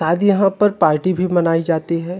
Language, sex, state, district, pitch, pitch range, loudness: Hindi, male, Uttarakhand, Uttarkashi, 175 Hz, 165-190 Hz, -17 LUFS